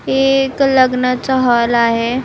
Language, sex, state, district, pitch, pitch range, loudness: Marathi, female, Maharashtra, Nagpur, 255 Hz, 240-265 Hz, -13 LUFS